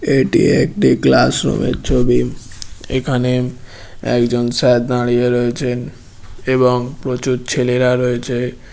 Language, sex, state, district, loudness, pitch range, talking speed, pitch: Bengali, male, West Bengal, Jhargram, -16 LUFS, 120-125 Hz, 105 wpm, 125 Hz